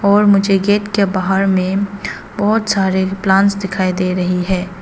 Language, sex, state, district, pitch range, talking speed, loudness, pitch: Hindi, female, Arunachal Pradesh, Papum Pare, 190-200 Hz, 160 wpm, -15 LUFS, 195 Hz